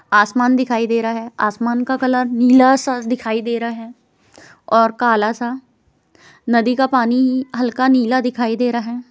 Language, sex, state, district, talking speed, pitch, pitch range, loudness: Hindi, female, Bihar, Jamui, 170 wpm, 245 Hz, 230-255 Hz, -16 LUFS